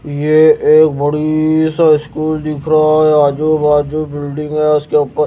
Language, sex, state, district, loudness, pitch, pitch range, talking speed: Hindi, male, Bihar, Patna, -12 LUFS, 155 Hz, 150-155 Hz, 160 wpm